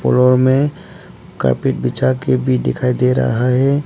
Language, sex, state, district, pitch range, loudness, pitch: Hindi, male, Arunachal Pradesh, Papum Pare, 125-130 Hz, -16 LUFS, 125 Hz